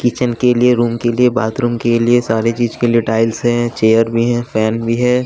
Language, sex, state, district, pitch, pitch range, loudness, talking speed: Hindi, male, Bihar, West Champaran, 120 Hz, 115-120 Hz, -14 LUFS, 240 wpm